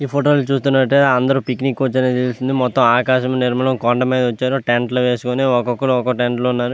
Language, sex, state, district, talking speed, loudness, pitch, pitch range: Telugu, male, Andhra Pradesh, Visakhapatnam, 205 wpm, -16 LUFS, 130 Hz, 125-135 Hz